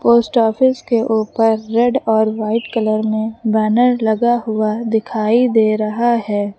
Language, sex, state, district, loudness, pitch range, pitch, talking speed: Hindi, female, Uttar Pradesh, Lucknow, -16 LUFS, 215-235 Hz, 220 Hz, 145 wpm